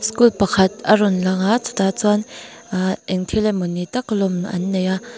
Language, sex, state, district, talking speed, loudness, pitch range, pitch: Mizo, female, Mizoram, Aizawl, 195 wpm, -19 LUFS, 185-215 Hz, 200 Hz